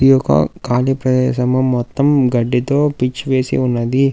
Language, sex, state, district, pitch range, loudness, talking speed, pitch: Telugu, male, Andhra Pradesh, Krishna, 125-135 Hz, -15 LUFS, 130 wpm, 130 Hz